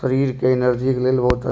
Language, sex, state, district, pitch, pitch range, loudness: Maithili, male, Bihar, Supaul, 130 Hz, 125-130 Hz, -19 LUFS